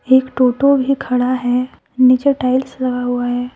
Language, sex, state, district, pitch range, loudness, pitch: Hindi, female, Jharkhand, Deoghar, 250-260 Hz, -16 LUFS, 255 Hz